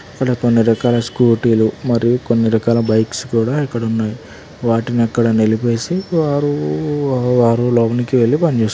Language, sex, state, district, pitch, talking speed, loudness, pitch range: Telugu, male, Telangana, Karimnagar, 120 Hz, 125 wpm, -16 LUFS, 115-125 Hz